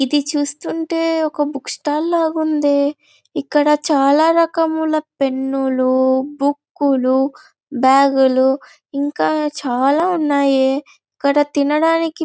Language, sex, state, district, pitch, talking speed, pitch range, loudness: Telugu, female, Andhra Pradesh, Anantapur, 290 Hz, 110 wpm, 270-315 Hz, -17 LUFS